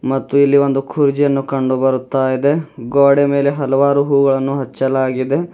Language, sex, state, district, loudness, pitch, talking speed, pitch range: Kannada, male, Karnataka, Bidar, -15 LUFS, 140 Hz, 130 wpm, 135-140 Hz